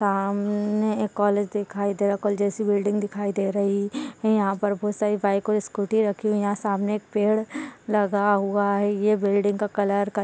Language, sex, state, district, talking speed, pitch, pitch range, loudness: Hindi, female, Uttarakhand, Tehri Garhwal, 215 wpm, 205 Hz, 200-210 Hz, -24 LUFS